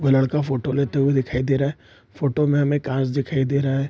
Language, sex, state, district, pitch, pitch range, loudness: Hindi, male, Bihar, Araria, 135 Hz, 135-140 Hz, -21 LUFS